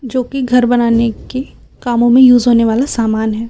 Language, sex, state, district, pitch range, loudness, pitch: Hindi, female, Chhattisgarh, Raipur, 230-255 Hz, -12 LUFS, 245 Hz